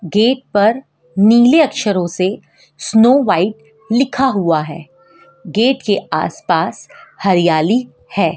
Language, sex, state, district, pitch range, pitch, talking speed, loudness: Hindi, female, Madhya Pradesh, Dhar, 170-245 Hz, 205 Hz, 115 wpm, -15 LUFS